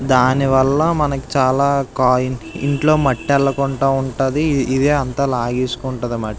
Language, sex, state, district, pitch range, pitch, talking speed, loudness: Telugu, male, Andhra Pradesh, Visakhapatnam, 130-140 Hz, 135 Hz, 130 wpm, -17 LUFS